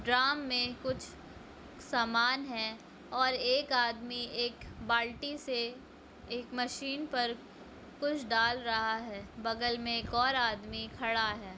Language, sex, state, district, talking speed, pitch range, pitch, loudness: Hindi, female, Uttarakhand, Uttarkashi, 130 wpm, 230-255 Hz, 240 Hz, -33 LUFS